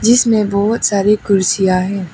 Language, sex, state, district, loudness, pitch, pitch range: Hindi, female, Arunachal Pradesh, Papum Pare, -14 LUFS, 200 Hz, 195-215 Hz